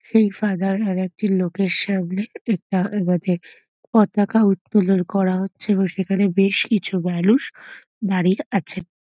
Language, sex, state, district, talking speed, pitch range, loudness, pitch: Bengali, female, West Bengal, Paschim Medinipur, 110 wpm, 185-205 Hz, -20 LUFS, 195 Hz